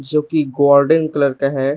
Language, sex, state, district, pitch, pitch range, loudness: Hindi, male, Arunachal Pradesh, Lower Dibang Valley, 140 Hz, 140-150 Hz, -15 LUFS